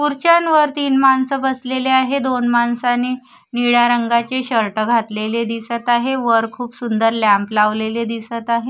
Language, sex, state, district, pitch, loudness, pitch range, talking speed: Marathi, female, Maharashtra, Gondia, 240 Hz, -17 LUFS, 230-260 Hz, 140 wpm